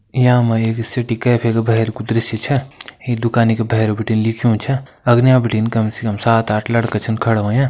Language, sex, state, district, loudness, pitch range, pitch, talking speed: Kumaoni, male, Uttarakhand, Uttarkashi, -16 LUFS, 110-120 Hz, 115 Hz, 210 wpm